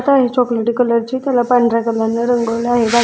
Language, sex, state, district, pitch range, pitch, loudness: Marathi, female, Maharashtra, Sindhudurg, 230-245 Hz, 240 Hz, -15 LUFS